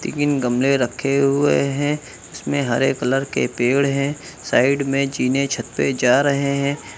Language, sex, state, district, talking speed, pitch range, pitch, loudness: Hindi, male, Uttar Pradesh, Lucknow, 165 wpm, 130-140 Hz, 140 Hz, -19 LUFS